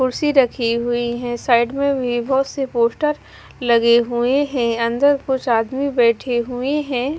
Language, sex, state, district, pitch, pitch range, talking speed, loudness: Hindi, female, Punjab, Fazilka, 245 Hz, 235-275 Hz, 160 wpm, -18 LUFS